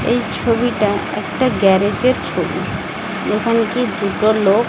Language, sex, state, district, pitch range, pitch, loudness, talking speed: Bengali, female, Odisha, Malkangiri, 205-240 Hz, 225 Hz, -17 LUFS, 115 wpm